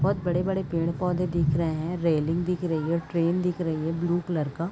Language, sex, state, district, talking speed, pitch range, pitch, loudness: Hindi, female, Chhattisgarh, Raigarh, 215 wpm, 160-180 Hz, 170 Hz, -26 LUFS